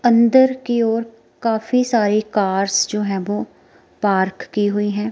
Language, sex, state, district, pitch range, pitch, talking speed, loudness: Hindi, female, Himachal Pradesh, Shimla, 205-235 Hz, 215 Hz, 150 wpm, -18 LUFS